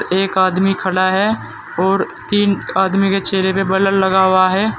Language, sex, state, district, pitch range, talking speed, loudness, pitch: Hindi, male, Uttar Pradesh, Saharanpur, 190-195 Hz, 175 wpm, -15 LUFS, 190 Hz